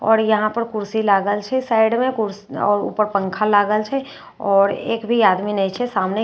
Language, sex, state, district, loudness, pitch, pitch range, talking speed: Maithili, female, Bihar, Katihar, -19 LUFS, 215 Hz, 205-225 Hz, 190 wpm